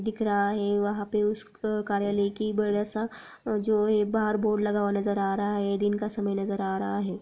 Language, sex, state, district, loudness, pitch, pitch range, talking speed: Hindi, female, Maharashtra, Aurangabad, -27 LUFS, 205 Hz, 200-215 Hz, 215 wpm